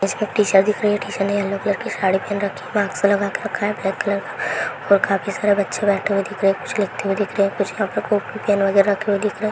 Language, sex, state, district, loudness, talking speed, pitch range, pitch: Hindi, female, Bihar, Saharsa, -20 LUFS, 265 wpm, 195-205 Hz, 200 Hz